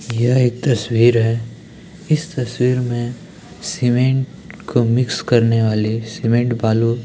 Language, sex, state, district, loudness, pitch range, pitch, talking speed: Hindi, male, Uttarakhand, Tehri Garhwal, -17 LUFS, 115-125 Hz, 120 Hz, 130 wpm